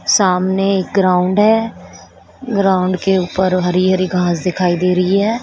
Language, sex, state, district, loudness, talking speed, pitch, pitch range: Hindi, female, Uttar Pradesh, Shamli, -15 LUFS, 155 wpm, 185 Hz, 180-195 Hz